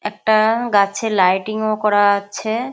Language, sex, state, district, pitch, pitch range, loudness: Bengali, female, West Bengal, Kolkata, 215 Hz, 200-220 Hz, -17 LUFS